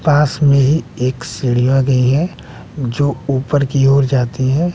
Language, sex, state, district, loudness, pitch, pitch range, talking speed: Hindi, male, Bihar, West Champaran, -15 LUFS, 135 Hz, 130-145 Hz, 175 wpm